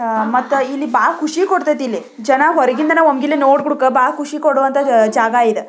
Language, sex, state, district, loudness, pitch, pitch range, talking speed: Kannada, female, Karnataka, Belgaum, -14 LUFS, 275 Hz, 250-300 Hz, 145 wpm